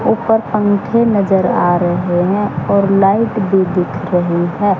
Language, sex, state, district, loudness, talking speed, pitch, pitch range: Hindi, male, Haryana, Charkhi Dadri, -14 LUFS, 150 wpm, 195 Hz, 180-205 Hz